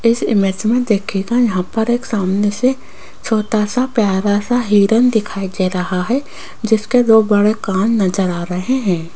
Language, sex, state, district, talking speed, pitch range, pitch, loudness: Hindi, female, Rajasthan, Jaipur, 170 wpm, 195-230 Hz, 215 Hz, -16 LUFS